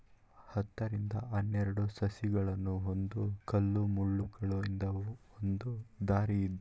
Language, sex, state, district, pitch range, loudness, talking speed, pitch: Kannada, male, Karnataka, Mysore, 100-105 Hz, -36 LUFS, 75 wpm, 100 Hz